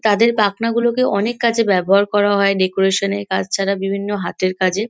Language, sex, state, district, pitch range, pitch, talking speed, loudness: Bengali, female, West Bengal, Kolkata, 195-220 Hz, 200 Hz, 170 wpm, -17 LUFS